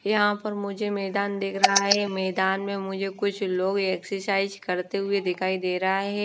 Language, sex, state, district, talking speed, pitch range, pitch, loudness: Hindi, female, Odisha, Nuapada, 180 wpm, 190-200 Hz, 195 Hz, -25 LUFS